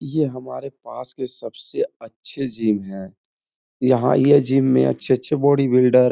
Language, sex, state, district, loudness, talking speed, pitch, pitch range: Hindi, male, Uttar Pradesh, Etah, -19 LUFS, 175 wpm, 130 Hz, 125-140 Hz